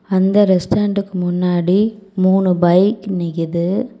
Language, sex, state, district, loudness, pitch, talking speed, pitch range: Tamil, female, Tamil Nadu, Kanyakumari, -16 LUFS, 190 Hz, 90 wpm, 180-205 Hz